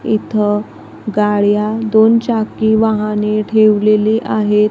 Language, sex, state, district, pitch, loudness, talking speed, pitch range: Marathi, female, Maharashtra, Gondia, 215 Hz, -14 LUFS, 90 wpm, 210-220 Hz